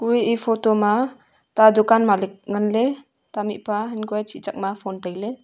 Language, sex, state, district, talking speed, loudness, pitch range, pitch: Wancho, female, Arunachal Pradesh, Longding, 230 wpm, -21 LUFS, 205-225 Hz, 215 Hz